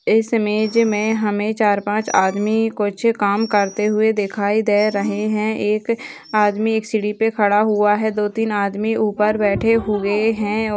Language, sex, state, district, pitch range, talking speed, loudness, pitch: Hindi, female, Maharashtra, Aurangabad, 205-220 Hz, 160 wpm, -18 LUFS, 215 Hz